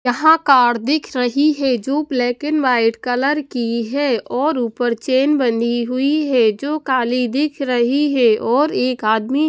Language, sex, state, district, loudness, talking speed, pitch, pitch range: Hindi, female, Punjab, Pathankot, -17 LUFS, 165 wpm, 255 Hz, 240-290 Hz